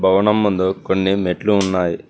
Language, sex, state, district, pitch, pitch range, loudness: Telugu, male, Telangana, Mahabubabad, 95 Hz, 95-100 Hz, -17 LUFS